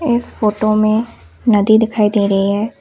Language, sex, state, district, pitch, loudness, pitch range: Hindi, female, Assam, Kamrup Metropolitan, 215 Hz, -14 LUFS, 210-225 Hz